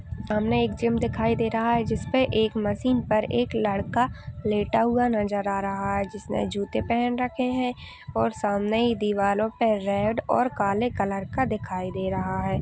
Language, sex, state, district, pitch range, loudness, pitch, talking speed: Hindi, female, Chhattisgarh, Rajnandgaon, 200-235 Hz, -25 LUFS, 215 Hz, 180 wpm